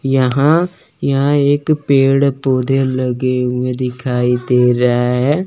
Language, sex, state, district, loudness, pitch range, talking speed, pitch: Hindi, male, Chandigarh, Chandigarh, -15 LUFS, 125-140 Hz, 130 wpm, 130 Hz